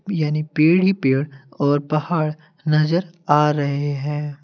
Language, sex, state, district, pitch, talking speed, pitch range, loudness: Hindi, male, Bihar, Kaimur, 150 Hz, 135 wpm, 145-160 Hz, -20 LUFS